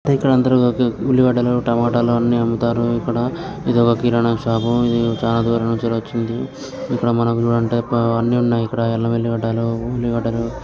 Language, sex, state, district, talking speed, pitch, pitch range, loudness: Telugu, male, Andhra Pradesh, Srikakulam, 125 wpm, 115 Hz, 115-120 Hz, -18 LUFS